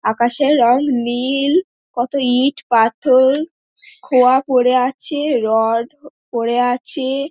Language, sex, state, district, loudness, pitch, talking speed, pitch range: Bengali, female, West Bengal, Dakshin Dinajpur, -16 LUFS, 255 Hz, 100 wpm, 240-280 Hz